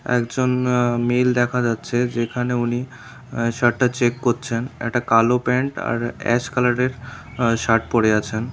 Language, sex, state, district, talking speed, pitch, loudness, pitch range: Bengali, male, Tripura, South Tripura, 140 wpm, 120 Hz, -20 LUFS, 115-125 Hz